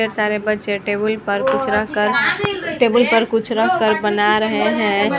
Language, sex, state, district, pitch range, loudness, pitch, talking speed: Hindi, female, Chhattisgarh, Sarguja, 210-225 Hz, -17 LUFS, 215 Hz, 175 wpm